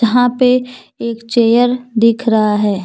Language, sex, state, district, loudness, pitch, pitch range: Hindi, female, Jharkhand, Deoghar, -13 LUFS, 235 Hz, 225-245 Hz